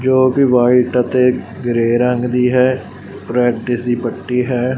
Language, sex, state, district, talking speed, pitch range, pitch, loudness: Punjabi, male, Punjab, Fazilka, 150 wpm, 120-125 Hz, 125 Hz, -15 LUFS